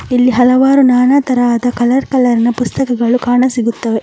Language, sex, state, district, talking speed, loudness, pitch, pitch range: Kannada, male, Karnataka, Mysore, 120 wpm, -12 LUFS, 245 Hz, 240-260 Hz